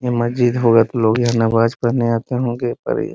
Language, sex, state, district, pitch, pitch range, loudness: Hindi, male, Bihar, Muzaffarpur, 120 Hz, 115-125 Hz, -17 LUFS